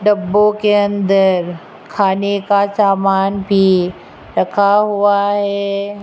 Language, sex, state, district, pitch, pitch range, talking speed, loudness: Hindi, female, Rajasthan, Jaipur, 200 Hz, 195-205 Hz, 100 wpm, -14 LUFS